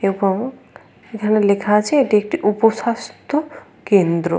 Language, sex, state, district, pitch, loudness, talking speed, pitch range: Bengali, female, West Bengal, Paschim Medinipur, 210 Hz, -18 LUFS, 110 wpm, 200-235 Hz